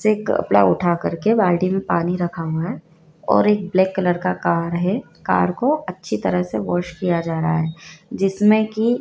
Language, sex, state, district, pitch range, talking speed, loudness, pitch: Hindi, female, Madhya Pradesh, Dhar, 165-195 Hz, 185 wpm, -20 LUFS, 175 Hz